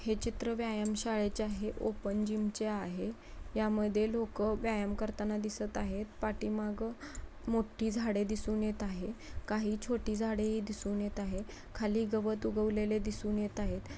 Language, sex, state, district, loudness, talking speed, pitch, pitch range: Marathi, female, Maharashtra, Pune, -36 LUFS, 140 wpm, 215 Hz, 210-220 Hz